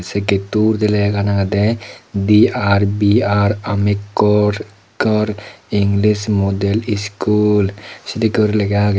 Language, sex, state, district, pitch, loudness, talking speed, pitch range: Chakma, male, Tripura, Dhalai, 105 Hz, -16 LUFS, 65 wpm, 100-105 Hz